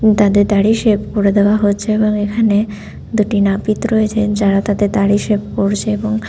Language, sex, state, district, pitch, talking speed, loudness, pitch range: Bengali, female, West Bengal, Paschim Medinipur, 210 Hz, 160 wpm, -15 LUFS, 205-215 Hz